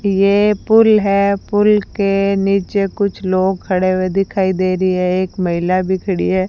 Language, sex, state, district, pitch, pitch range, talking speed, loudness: Hindi, female, Rajasthan, Bikaner, 195 Hz, 185-200 Hz, 175 wpm, -15 LUFS